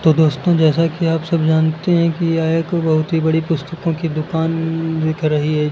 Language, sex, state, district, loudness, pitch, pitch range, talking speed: Hindi, male, Uttar Pradesh, Lucknow, -17 LUFS, 160 Hz, 160-165 Hz, 200 wpm